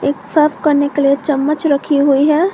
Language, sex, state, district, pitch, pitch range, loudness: Hindi, female, Jharkhand, Garhwa, 290 Hz, 280-305 Hz, -14 LUFS